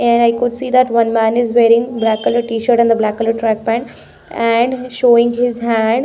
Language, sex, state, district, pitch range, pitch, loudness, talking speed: English, female, Punjab, Pathankot, 230-240 Hz, 235 Hz, -14 LUFS, 220 wpm